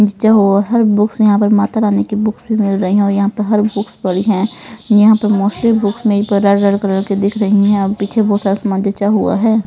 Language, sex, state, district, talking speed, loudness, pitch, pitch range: Hindi, male, Punjab, Pathankot, 250 wpm, -13 LUFS, 205 Hz, 200-215 Hz